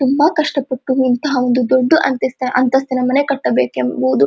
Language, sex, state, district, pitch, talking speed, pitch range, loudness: Kannada, female, Karnataka, Dharwad, 255 Hz, 140 wpm, 250-275 Hz, -15 LUFS